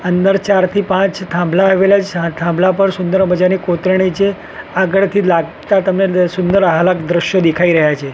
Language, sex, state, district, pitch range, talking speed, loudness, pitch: Gujarati, male, Gujarat, Gandhinagar, 175-195 Hz, 160 wpm, -13 LUFS, 185 Hz